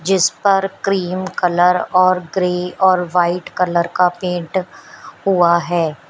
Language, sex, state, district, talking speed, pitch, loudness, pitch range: Hindi, female, Uttar Pradesh, Shamli, 130 wpm, 180 Hz, -16 LUFS, 175-185 Hz